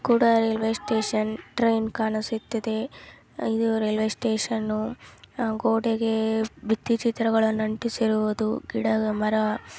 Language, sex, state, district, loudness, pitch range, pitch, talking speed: Kannada, female, Karnataka, Raichur, -25 LUFS, 220-225 Hz, 220 Hz, 110 wpm